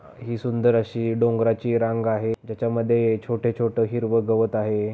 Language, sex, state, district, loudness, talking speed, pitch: Marathi, male, Maharashtra, Pune, -23 LUFS, 135 wpm, 115 Hz